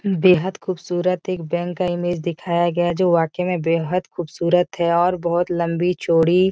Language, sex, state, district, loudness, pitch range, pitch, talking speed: Hindi, female, Bihar, Jahanabad, -20 LUFS, 170-180 Hz, 175 Hz, 165 wpm